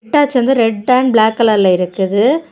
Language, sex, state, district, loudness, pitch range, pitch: Tamil, female, Tamil Nadu, Kanyakumari, -13 LUFS, 205-260 Hz, 230 Hz